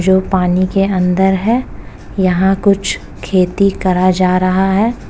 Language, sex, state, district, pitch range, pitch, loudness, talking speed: Hindi, female, Uttar Pradesh, Jalaun, 185-195 Hz, 190 Hz, -14 LUFS, 140 wpm